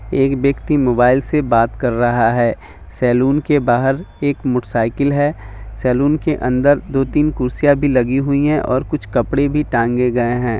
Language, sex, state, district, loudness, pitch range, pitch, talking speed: Hindi, male, Jharkhand, Jamtara, -16 LUFS, 120-145 Hz, 130 Hz, 175 wpm